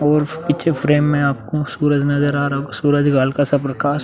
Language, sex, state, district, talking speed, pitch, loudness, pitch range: Hindi, male, Uttar Pradesh, Muzaffarnagar, 225 wpm, 145 Hz, -17 LUFS, 140-150 Hz